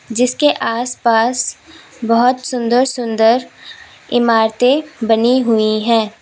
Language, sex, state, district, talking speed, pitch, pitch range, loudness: Hindi, female, Uttar Pradesh, Lalitpur, 85 wpm, 240 Hz, 225-255 Hz, -15 LUFS